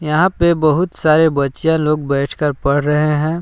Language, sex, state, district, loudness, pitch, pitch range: Hindi, male, Jharkhand, Palamu, -15 LUFS, 155 Hz, 145-160 Hz